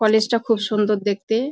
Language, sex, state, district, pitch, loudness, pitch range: Bengali, female, West Bengal, Jalpaiguri, 220 Hz, -20 LUFS, 210-225 Hz